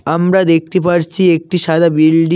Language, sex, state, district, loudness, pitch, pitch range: Bengali, male, West Bengal, Cooch Behar, -12 LUFS, 170 Hz, 165-180 Hz